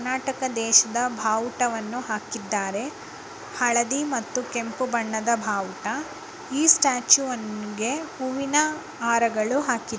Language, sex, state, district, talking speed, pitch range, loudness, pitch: Kannada, female, Karnataka, Raichur, 90 wpm, 225-275 Hz, -23 LUFS, 245 Hz